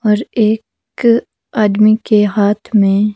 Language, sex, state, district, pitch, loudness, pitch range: Hindi, female, Himachal Pradesh, Shimla, 215 Hz, -13 LUFS, 205-220 Hz